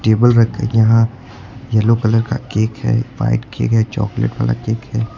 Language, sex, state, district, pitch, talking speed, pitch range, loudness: Hindi, male, Uttar Pradesh, Lucknow, 115 Hz, 185 wpm, 110-115 Hz, -16 LUFS